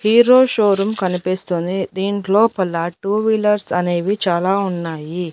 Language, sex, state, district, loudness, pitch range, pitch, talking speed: Telugu, female, Andhra Pradesh, Annamaya, -17 LUFS, 175-210 Hz, 190 Hz, 115 wpm